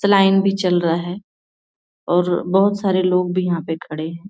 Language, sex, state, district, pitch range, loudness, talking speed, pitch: Hindi, female, Bihar, Gaya, 175-195 Hz, -18 LUFS, 180 wpm, 180 Hz